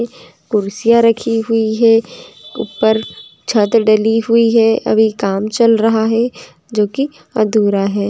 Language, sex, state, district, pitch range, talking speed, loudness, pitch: Hindi, female, Andhra Pradesh, Chittoor, 215-230 Hz, 135 wpm, -14 LUFS, 225 Hz